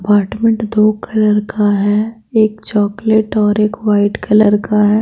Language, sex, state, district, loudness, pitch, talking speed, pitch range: Hindi, female, Bihar, Patna, -14 LUFS, 210 Hz, 155 wpm, 210-220 Hz